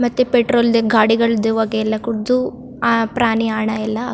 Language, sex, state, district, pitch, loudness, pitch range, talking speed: Kannada, female, Karnataka, Chamarajanagar, 230 Hz, -17 LUFS, 220-240 Hz, 190 wpm